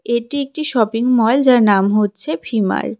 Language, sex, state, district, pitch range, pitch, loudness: Bengali, female, West Bengal, Cooch Behar, 205-250 Hz, 230 Hz, -16 LUFS